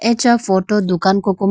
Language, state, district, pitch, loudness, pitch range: Idu Mishmi, Arunachal Pradesh, Lower Dibang Valley, 195 Hz, -15 LUFS, 190-230 Hz